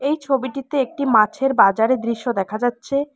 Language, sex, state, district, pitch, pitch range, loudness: Bengali, female, West Bengal, Alipurduar, 260 Hz, 235-275 Hz, -19 LUFS